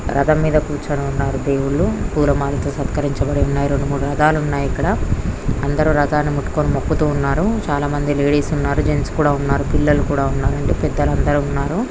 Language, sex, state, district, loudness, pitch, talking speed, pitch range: Telugu, female, Andhra Pradesh, Krishna, -18 LUFS, 145 Hz, 140 wpm, 140-150 Hz